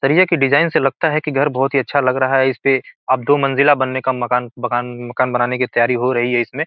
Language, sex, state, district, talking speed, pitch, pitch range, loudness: Hindi, male, Bihar, Gopalganj, 280 wpm, 130 Hz, 125-140 Hz, -16 LUFS